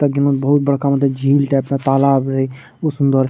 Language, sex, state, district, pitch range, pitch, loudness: Maithili, male, Bihar, Madhepura, 135-140 Hz, 140 Hz, -16 LUFS